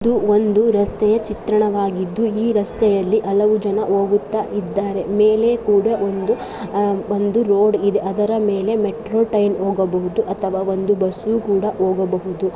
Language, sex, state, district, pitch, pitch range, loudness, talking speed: Kannada, female, Karnataka, Gulbarga, 205 Hz, 195-215 Hz, -18 LUFS, 135 wpm